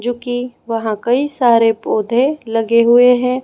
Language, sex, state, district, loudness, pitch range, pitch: Hindi, female, Chhattisgarh, Raipur, -15 LUFS, 230-250 Hz, 245 Hz